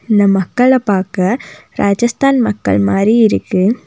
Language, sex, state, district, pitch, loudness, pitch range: Tamil, female, Tamil Nadu, Nilgiris, 205 Hz, -13 LUFS, 185-235 Hz